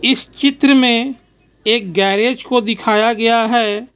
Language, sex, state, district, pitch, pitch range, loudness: Hindi, male, Jharkhand, Ranchi, 230 Hz, 225-255 Hz, -14 LUFS